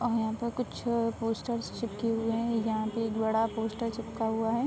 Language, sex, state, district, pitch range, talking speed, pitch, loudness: Hindi, female, Uttar Pradesh, Muzaffarnagar, 225-235 Hz, 205 wpm, 225 Hz, -31 LUFS